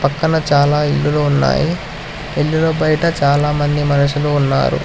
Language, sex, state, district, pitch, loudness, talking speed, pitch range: Telugu, male, Telangana, Hyderabad, 145 Hz, -15 LUFS, 125 wpm, 145-155 Hz